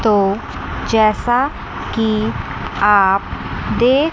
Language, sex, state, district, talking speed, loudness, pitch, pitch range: Hindi, female, Chandigarh, Chandigarh, 70 wpm, -17 LUFS, 220 Hz, 205-240 Hz